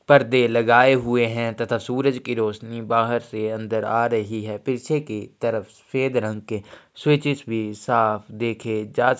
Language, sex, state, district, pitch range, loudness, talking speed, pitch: Hindi, male, Chhattisgarh, Sukma, 110-125 Hz, -22 LUFS, 175 wpm, 115 Hz